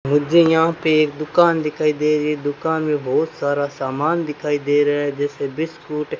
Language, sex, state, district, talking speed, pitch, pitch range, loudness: Hindi, male, Rajasthan, Bikaner, 205 wpm, 150 Hz, 145-160 Hz, -19 LUFS